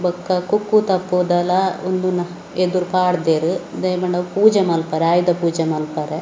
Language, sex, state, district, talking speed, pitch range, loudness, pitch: Tulu, female, Karnataka, Dakshina Kannada, 95 wpm, 170-185 Hz, -18 LUFS, 180 Hz